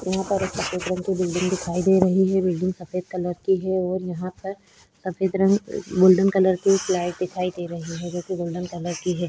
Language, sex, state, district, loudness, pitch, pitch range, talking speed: Hindi, female, Uttar Pradesh, Budaun, -23 LUFS, 185 Hz, 180-190 Hz, 235 wpm